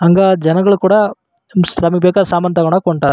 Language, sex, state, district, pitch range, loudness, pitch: Kannada, male, Karnataka, Raichur, 170-195 Hz, -13 LUFS, 180 Hz